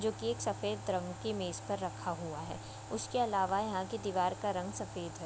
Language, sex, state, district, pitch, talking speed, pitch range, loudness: Hindi, female, Bihar, Vaishali, 200 Hz, 230 wpm, 190-225 Hz, -36 LUFS